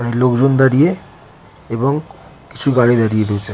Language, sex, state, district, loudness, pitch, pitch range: Bengali, male, West Bengal, Kolkata, -15 LUFS, 125 Hz, 115-135 Hz